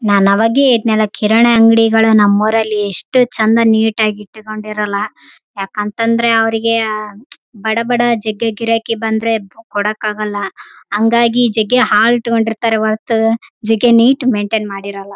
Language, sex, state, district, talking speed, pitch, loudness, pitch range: Kannada, female, Karnataka, Raichur, 100 wpm, 225 Hz, -13 LUFS, 210-230 Hz